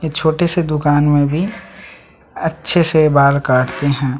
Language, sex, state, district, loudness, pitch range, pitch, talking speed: Hindi, male, Chhattisgarh, Sukma, -15 LUFS, 140-160 Hz, 150 Hz, 155 wpm